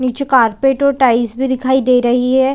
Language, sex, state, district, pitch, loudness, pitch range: Hindi, female, Chhattisgarh, Bilaspur, 260 Hz, -13 LUFS, 250-265 Hz